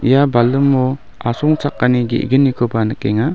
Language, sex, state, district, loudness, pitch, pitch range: Garo, male, Meghalaya, West Garo Hills, -15 LUFS, 130 Hz, 120-140 Hz